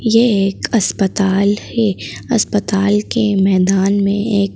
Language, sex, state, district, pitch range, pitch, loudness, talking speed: Hindi, female, Madhya Pradesh, Bhopal, 195-215 Hz, 200 Hz, -15 LUFS, 120 wpm